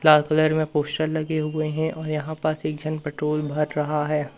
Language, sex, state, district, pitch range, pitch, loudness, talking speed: Hindi, male, Madhya Pradesh, Umaria, 150-155 Hz, 155 Hz, -24 LUFS, 220 wpm